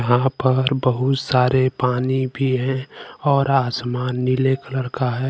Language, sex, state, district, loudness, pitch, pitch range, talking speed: Hindi, male, Jharkhand, Ranchi, -20 LUFS, 130 Hz, 125-135 Hz, 145 wpm